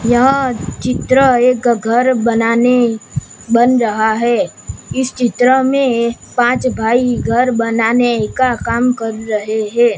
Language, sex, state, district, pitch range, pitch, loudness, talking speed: Hindi, male, Gujarat, Gandhinagar, 230-250 Hz, 240 Hz, -14 LUFS, 125 wpm